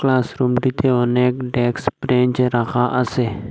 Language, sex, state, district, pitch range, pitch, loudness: Bengali, male, Assam, Hailakandi, 120-125 Hz, 125 Hz, -18 LUFS